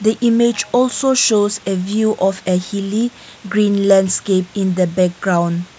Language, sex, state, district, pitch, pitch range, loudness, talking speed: English, female, Nagaland, Kohima, 200 Hz, 185-220 Hz, -16 LUFS, 135 wpm